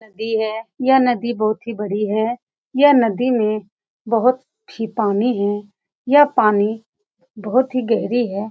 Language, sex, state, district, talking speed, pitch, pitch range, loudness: Hindi, female, Bihar, Saran, 150 wpm, 225 Hz, 215-255 Hz, -18 LUFS